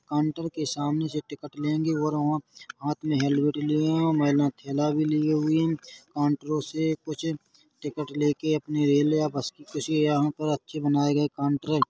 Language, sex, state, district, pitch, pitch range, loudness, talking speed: Hindi, male, Chhattisgarh, Korba, 150 Hz, 145-155 Hz, -26 LUFS, 190 wpm